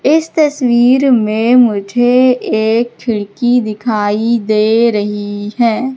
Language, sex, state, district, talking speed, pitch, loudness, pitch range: Hindi, female, Madhya Pradesh, Katni, 100 wpm, 235 Hz, -12 LUFS, 215-245 Hz